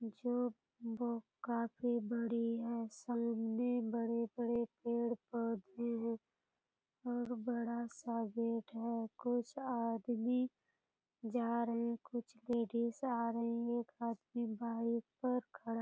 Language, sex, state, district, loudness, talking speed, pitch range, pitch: Hindi, female, Bihar, Purnia, -40 LUFS, 115 wpm, 230-240 Hz, 235 Hz